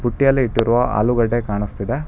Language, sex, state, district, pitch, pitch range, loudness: Kannada, male, Karnataka, Bangalore, 120 Hz, 110-125 Hz, -18 LUFS